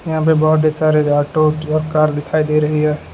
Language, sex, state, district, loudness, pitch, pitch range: Hindi, male, Uttar Pradesh, Lucknow, -15 LUFS, 155 Hz, 150-155 Hz